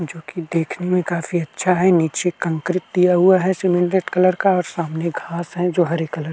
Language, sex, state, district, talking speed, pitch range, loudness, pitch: Hindi, male, Uttar Pradesh, Jalaun, 210 wpm, 165-180 Hz, -19 LUFS, 175 Hz